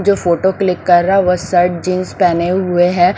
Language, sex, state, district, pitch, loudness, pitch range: Hindi, female, Maharashtra, Washim, 180 Hz, -14 LUFS, 175-190 Hz